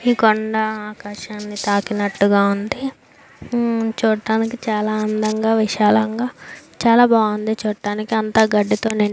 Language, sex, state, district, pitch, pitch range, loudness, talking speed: Telugu, female, Andhra Pradesh, Anantapur, 215 Hz, 210-225 Hz, -18 LUFS, 110 wpm